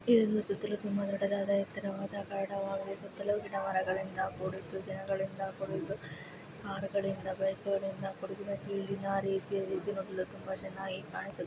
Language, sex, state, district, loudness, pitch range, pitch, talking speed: Kannada, female, Karnataka, Shimoga, -36 LUFS, 190-200 Hz, 195 Hz, 115 wpm